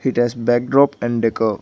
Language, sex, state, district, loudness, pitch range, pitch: English, male, Arunachal Pradesh, Lower Dibang Valley, -18 LUFS, 115-125 Hz, 120 Hz